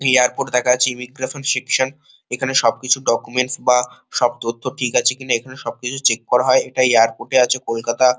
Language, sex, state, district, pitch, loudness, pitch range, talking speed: Bengali, male, West Bengal, Kolkata, 125 Hz, -18 LUFS, 120-130 Hz, 185 wpm